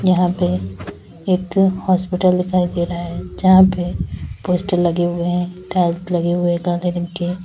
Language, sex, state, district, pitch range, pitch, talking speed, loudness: Hindi, female, Uttar Pradesh, Lalitpur, 175-185 Hz, 175 Hz, 170 wpm, -18 LUFS